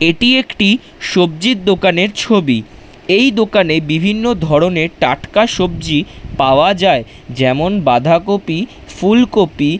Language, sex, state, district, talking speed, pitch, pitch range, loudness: Bengali, male, West Bengal, Dakshin Dinajpur, 100 wpm, 180 Hz, 160-210 Hz, -13 LUFS